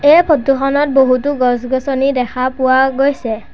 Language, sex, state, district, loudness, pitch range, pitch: Assamese, male, Assam, Sonitpur, -14 LUFS, 255-275 Hz, 265 Hz